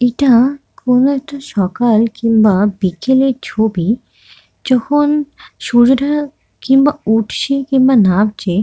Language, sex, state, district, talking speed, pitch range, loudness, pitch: Bengali, female, West Bengal, Kolkata, 90 wpm, 220-275 Hz, -13 LUFS, 250 Hz